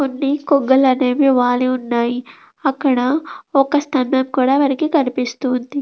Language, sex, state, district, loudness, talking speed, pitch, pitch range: Telugu, female, Andhra Pradesh, Krishna, -17 LUFS, 125 wpm, 270 Hz, 255-280 Hz